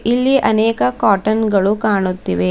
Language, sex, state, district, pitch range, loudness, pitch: Kannada, female, Karnataka, Bidar, 190-220 Hz, -15 LUFS, 210 Hz